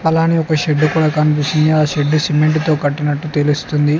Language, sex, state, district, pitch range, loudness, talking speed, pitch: Telugu, male, Telangana, Mahabubabad, 150-155 Hz, -15 LUFS, 150 wpm, 155 Hz